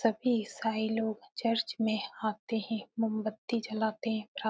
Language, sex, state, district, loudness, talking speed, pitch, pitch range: Hindi, female, Uttar Pradesh, Etah, -33 LUFS, 160 wpm, 220 Hz, 215-225 Hz